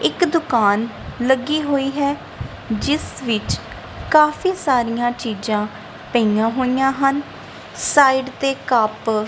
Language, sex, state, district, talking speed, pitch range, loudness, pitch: Punjabi, female, Punjab, Kapurthala, 110 wpm, 225-280 Hz, -19 LUFS, 260 Hz